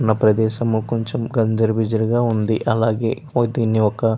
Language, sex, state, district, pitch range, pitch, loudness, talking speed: Telugu, male, Andhra Pradesh, Chittoor, 110-115 Hz, 115 Hz, -19 LUFS, 155 wpm